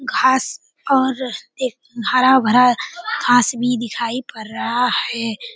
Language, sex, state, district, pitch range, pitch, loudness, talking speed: Hindi, female, Bihar, Kishanganj, 235-260 Hz, 250 Hz, -18 LUFS, 110 wpm